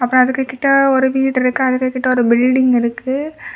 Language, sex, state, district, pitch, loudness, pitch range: Tamil, female, Tamil Nadu, Kanyakumari, 255 Hz, -15 LUFS, 255-265 Hz